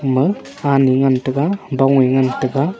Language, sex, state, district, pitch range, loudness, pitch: Wancho, male, Arunachal Pradesh, Longding, 130-140 Hz, -16 LUFS, 135 Hz